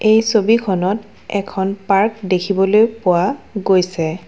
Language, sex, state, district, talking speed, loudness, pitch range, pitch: Assamese, female, Assam, Kamrup Metropolitan, 100 wpm, -17 LUFS, 185-215 Hz, 195 Hz